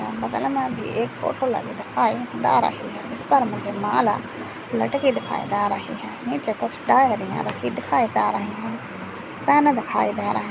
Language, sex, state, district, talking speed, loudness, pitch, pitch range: Hindi, female, Maharashtra, Solapur, 175 wpm, -23 LUFS, 270 Hz, 205-280 Hz